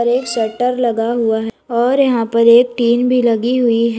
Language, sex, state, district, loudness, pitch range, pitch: Hindi, female, Uttar Pradesh, Lalitpur, -14 LUFS, 230-245 Hz, 235 Hz